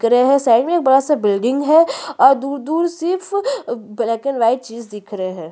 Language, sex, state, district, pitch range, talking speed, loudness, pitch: Hindi, female, Chhattisgarh, Sukma, 230-320 Hz, 230 wpm, -16 LUFS, 265 Hz